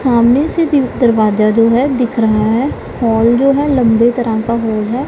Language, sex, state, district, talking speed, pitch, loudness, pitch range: Hindi, female, Punjab, Pathankot, 200 wpm, 235 Hz, -12 LUFS, 225-265 Hz